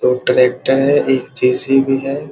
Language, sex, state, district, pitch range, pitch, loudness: Hindi, male, Bihar, Muzaffarpur, 125-135 Hz, 135 Hz, -15 LUFS